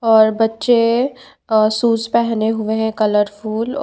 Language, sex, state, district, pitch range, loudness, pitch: Hindi, female, Bihar, Patna, 220-235 Hz, -16 LUFS, 225 Hz